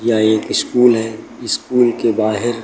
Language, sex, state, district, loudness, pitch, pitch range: Hindi, male, Uttar Pradesh, Lucknow, -15 LUFS, 115 Hz, 110-120 Hz